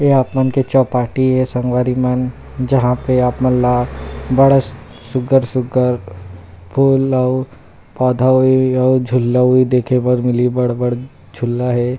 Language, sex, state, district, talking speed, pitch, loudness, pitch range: Chhattisgarhi, male, Chhattisgarh, Rajnandgaon, 145 wpm, 125 Hz, -15 LUFS, 125-130 Hz